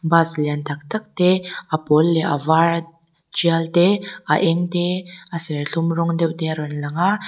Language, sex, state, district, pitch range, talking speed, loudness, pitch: Mizo, female, Mizoram, Aizawl, 155-180 Hz, 190 wpm, -20 LUFS, 165 Hz